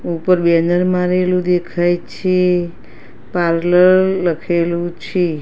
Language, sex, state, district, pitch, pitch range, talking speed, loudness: Gujarati, female, Gujarat, Gandhinagar, 175 Hz, 170-180 Hz, 90 wpm, -16 LUFS